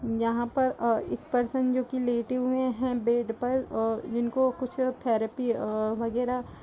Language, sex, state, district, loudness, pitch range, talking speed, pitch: Hindi, female, Chhattisgarh, Kabirdham, -28 LUFS, 230-255 Hz, 165 wpm, 245 Hz